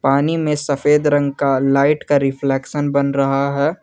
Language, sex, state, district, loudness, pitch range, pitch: Hindi, male, Jharkhand, Garhwa, -17 LUFS, 135-145 Hz, 140 Hz